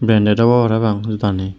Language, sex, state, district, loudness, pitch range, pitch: Chakma, male, Tripura, West Tripura, -15 LUFS, 105-115 Hz, 110 Hz